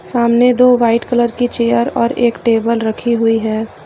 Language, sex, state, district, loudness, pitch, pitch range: Hindi, female, Uttar Pradesh, Lucknow, -14 LUFS, 235 Hz, 230-240 Hz